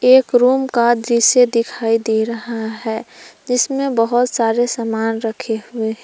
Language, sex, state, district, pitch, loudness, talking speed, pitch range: Hindi, female, Jharkhand, Palamu, 235 Hz, -17 LUFS, 150 wpm, 225-250 Hz